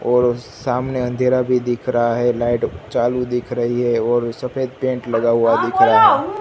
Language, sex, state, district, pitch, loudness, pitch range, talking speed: Hindi, male, Gujarat, Gandhinagar, 125 Hz, -18 LUFS, 120-125 Hz, 185 wpm